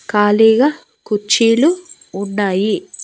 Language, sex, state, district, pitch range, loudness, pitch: Telugu, female, Andhra Pradesh, Annamaya, 205-295 Hz, -14 LUFS, 220 Hz